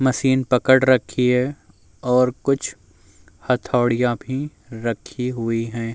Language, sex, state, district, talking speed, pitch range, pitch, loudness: Hindi, male, Uttar Pradesh, Muzaffarnagar, 110 wpm, 115-130 Hz, 125 Hz, -20 LUFS